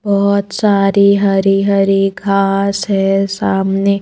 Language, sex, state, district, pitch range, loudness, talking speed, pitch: Hindi, female, Madhya Pradesh, Bhopal, 195-200 Hz, -13 LUFS, 105 wpm, 195 Hz